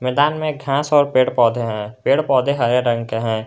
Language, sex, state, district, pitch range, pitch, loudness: Hindi, male, Jharkhand, Garhwa, 115-140 Hz, 125 Hz, -18 LUFS